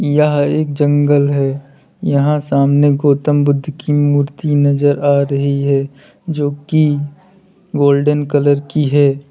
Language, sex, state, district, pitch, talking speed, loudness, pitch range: Hindi, male, Uttar Pradesh, Lalitpur, 145 Hz, 130 wpm, -14 LUFS, 140-150 Hz